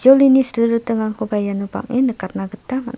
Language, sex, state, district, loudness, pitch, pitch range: Garo, female, Meghalaya, South Garo Hills, -18 LUFS, 230 Hz, 210-260 Hz